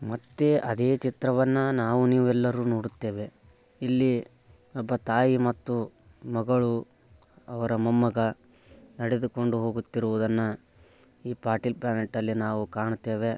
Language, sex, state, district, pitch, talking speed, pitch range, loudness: Kannada, male, Karnataka, Bijapur, 120 Hz, 90 wpm, 110-125 Hz, -27 LUFS